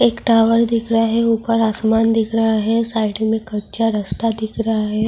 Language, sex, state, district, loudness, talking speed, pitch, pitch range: Urdu, female, Bihar, Saharsa, -17 LUFS, 165 wpm, 225 Hz, 220-230 Hz